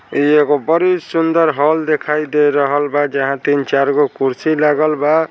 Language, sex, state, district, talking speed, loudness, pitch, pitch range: Bhojpuri, male, Bihar, Saran, 190 wpm, -15 LUFS, 150 Hz, 145-155 Hz